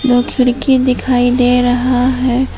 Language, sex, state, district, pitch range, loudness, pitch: Hindi, female, Jharkhand, Palamu, 245-255 Hz, -13 LUFS, 250 Hz